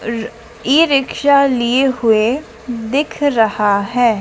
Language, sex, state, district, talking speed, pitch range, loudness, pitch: Hindi, female, Madhya Pradesh, Dhar, 115 wpm, 225-275 Hz, -15 LUFS, 240 Hz